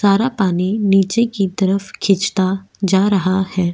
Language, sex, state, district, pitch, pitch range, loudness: Hindi, female, Goa, North and South Goa, 195 Hz, 190-200 Hz, -17 LUFS